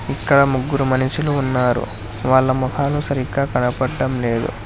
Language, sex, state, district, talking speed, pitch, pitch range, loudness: Telugu, male, Telangana, Hyderabad, 105 wpm, 130 Hz, 125-140 Hz, -18 LUFS